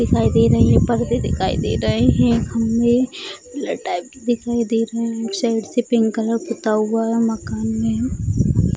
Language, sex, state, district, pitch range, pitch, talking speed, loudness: Hindi, female, Bihar, Jamui, 225-235 Hz, 230 Hz, 165 wpm, -19 LUFS